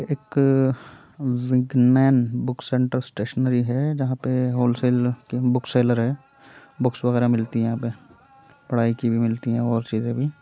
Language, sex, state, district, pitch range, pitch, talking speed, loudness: Hindi, male, Uttar Pradesh, Muzaffarnagar, 120-130 Hz, 125 Hz, 155 wpm, -22 LUFS